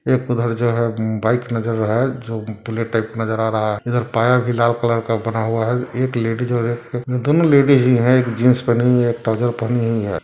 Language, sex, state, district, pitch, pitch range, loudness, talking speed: Hindi, male, Bihar, Sitamarhi, 120 Hz, 115-125 Hz, -18 LUFS, 235 wpm